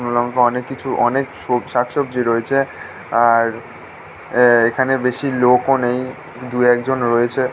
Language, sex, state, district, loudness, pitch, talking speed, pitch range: Bengali, male, West Bengal, North 24 Parganas, -17 LUFS, 125 Hz, 150 wpm, 120-130 Hz